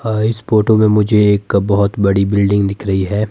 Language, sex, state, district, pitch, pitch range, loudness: Hindi, male, Himachal Pradesh, Shimla, 100 Hz, 100-110 Hz, -14 LUFS